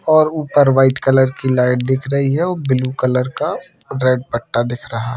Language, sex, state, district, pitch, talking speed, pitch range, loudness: Hindi, male, Jharkhand, Sahebganj, 130 Hz, 210 wpm, 125-140 Hz, -16 LUFS